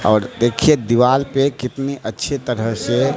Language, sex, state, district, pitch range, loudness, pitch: Hindi, male, Bihar, Katihar, 115-135 Hz, -18 LUFS, 125 Hz